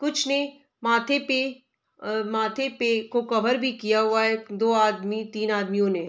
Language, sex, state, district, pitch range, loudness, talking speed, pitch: Hindi, female, Bihar, Saharsa, 215-260 Hz, -24 LUFS, 185 wpm, 225 Hz